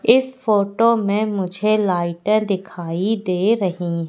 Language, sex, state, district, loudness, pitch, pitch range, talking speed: Hindi, female, Madhya Pradesh, Katni, -19 LUFS, 200 Hz, 180-215 Hz, 115 wpm